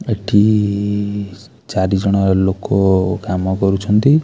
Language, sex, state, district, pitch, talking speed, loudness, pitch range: Odia, male, Odisha, Khordha, 100 Hz, 100 wpm, -16 LUFS, 95-105 Hz